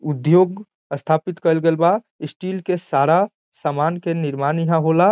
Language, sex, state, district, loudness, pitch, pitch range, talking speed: Bhojpuri, male, Bihar, Saran, -19 LUFS, 165 Hz, 155-180 Hz, 150 wpm